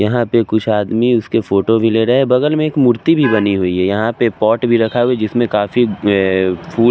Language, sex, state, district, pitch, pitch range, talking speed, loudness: Hindi, male, Chandigarh, Chandigarh, 115 Hz, 105-120 Hz, 260 wpm, -14 LUFS